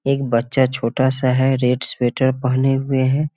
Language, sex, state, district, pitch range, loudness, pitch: Hindi, male, Bihar, Muzaffarpur, 125-135 Hz, -18 LUFS, 130 Hz